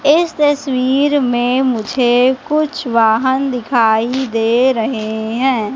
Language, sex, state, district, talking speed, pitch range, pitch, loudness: Hindi, female, Madhya Pradesh, Katni, 105 wpm, 230-270 Hz, 255 Hz, -15 LUFS